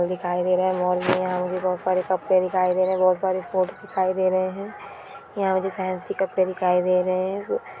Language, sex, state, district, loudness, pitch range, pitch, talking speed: Hindi, female, West Bengal, Purulia, -23 LUFS, 180-185 Hz, 185 Hz, 225 wpm